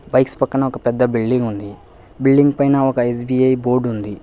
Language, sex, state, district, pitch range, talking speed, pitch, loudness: Telugu, male, Telangana, Hyderabad, 115-135 Hz, 170 wpm, 125 Hz, -17 LUFS